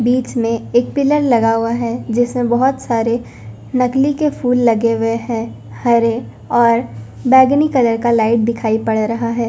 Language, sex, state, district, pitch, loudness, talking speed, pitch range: Hindi, female, Punjab, Fazilka, 235 Hz, -15 LUFS, 165 wpm, 225-250 Hz